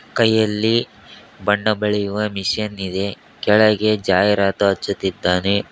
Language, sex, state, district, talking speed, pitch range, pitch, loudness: Kannada, male, Karnataka, Koppal, 85 wpm, 95-105 Hz, 105 Hz, -18 LUFS